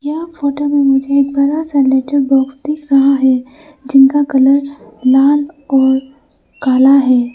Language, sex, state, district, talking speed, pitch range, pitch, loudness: Hindi, female, Arunachal Pradesh, Lower Dibang Valley, 145 wpm, 265-290 Hz, 275 Hz, -12 LUFS